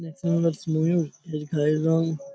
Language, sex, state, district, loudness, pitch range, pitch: Bengali, male, West Bengal, Paschim Medinipur, -25 LUFS, 155-170 Hz, 160 Hz